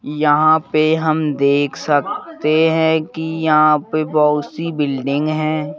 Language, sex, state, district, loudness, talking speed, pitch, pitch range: Hindi, male, Madhya Pradesh, Bhopal, -16 LUFS, 135 wpm, 155 Hz, 150-160 Hz